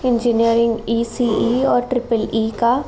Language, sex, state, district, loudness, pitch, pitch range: Hindi, female, Uttar Pradesh, Jalaun, -18 LUFS, 235 Hz, 230-245 Hz